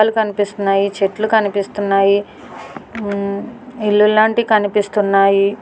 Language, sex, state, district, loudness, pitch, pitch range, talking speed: Telugu, female, Andhra Pradesh, Visakhapatnam, -16 LUFS, 205 Hz, 200-215 Hz, 65 wpm